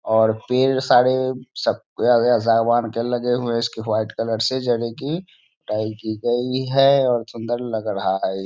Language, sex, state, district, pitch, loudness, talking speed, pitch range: Hindi, male, Bihar, Sitamarhi, 120 Hz, -20 LUFS, 120 wpm, 110-125 Hz